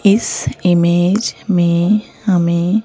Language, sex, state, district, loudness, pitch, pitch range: Hindi, female, Madhya Pradesh, Bhopal, -15 LUFS, 185 Hz, 170-205 Hz